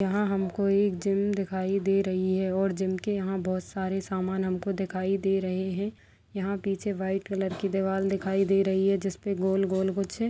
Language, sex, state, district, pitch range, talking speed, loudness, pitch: Hindi, female, Maharashtra, Solapur, 190-195 Hz, 190 wpm, -28 LUFS, 195 Hz